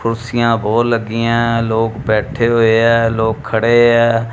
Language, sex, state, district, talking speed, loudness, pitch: Punjabi, male, Punjab, Kapurthala, 140 wpm, -14 LUFS, 115 Hz